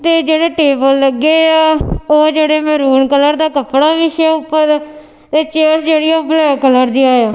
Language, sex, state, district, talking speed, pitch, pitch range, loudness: Punjabi, female, Punjab, Kapurthala, 170 wpm, 305 Hz, 280-315 Hz, -11 LUFS